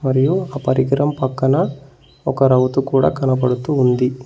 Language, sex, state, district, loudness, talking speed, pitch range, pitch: Telugu, male, Telangana, Mahabubabad, -17 LUFS, 125 wpm, 130-140 Hz, 135 Hz